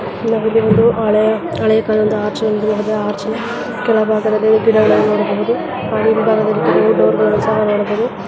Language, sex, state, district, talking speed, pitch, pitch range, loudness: Kannada, female, Karnataka, Bijapur, 45 wpm, 215 Hz, 210-220 Hz, -14 LUFS